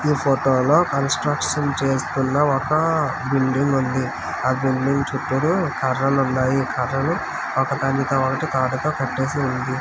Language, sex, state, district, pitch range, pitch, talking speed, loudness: Telugu, male, Andhra Pradesh, Visakhapatnam, 130-145 Hz, 135 Hz, 110 wpm, -21 LUFS